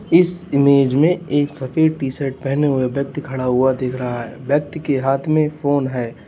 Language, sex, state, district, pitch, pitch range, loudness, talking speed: Hindi, male, Uttar Pradesh, Lalitpur, 140 Hz, 130-150 Hz, -18 LUFS, 200 wpm